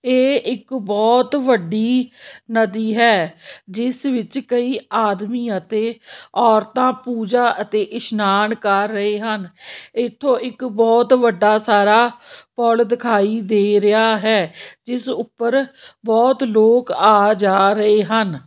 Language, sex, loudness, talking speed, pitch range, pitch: Punjabi, female, -17 LUFS, 115 wpm, 210-245 Hz, 230 Hz